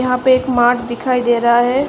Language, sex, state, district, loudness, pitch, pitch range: Hindi, female, Maharashtra, Chandrapur, -14 LUFS, 250 Hz, 240-255 Hz